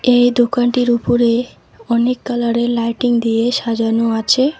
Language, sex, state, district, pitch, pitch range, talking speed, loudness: Bengali, female, West Bengal, Alipurduar, 240 Hz, 230-245 Hz, 115 wpm, -16 LUFS